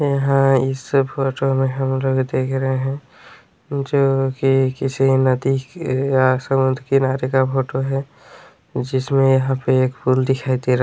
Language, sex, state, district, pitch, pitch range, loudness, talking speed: Hindi, male, Chhattisgarh, Raigarh, 135 Hz, 130-135 Hz, -19 LUFS, 140 wpm